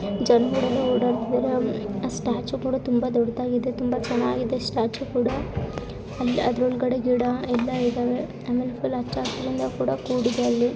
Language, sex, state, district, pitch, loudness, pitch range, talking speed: Kannada, female, Karnataka, Bijapur, 245 Hz, -24 LUFS, 230-250 Hz, 115 wpm